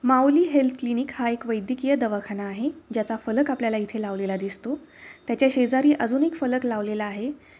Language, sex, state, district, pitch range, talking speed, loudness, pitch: Marathi, female, Maharashtra, Pune, 220-275 Hz, 165 wpm, -24 LUFS, 250 Hz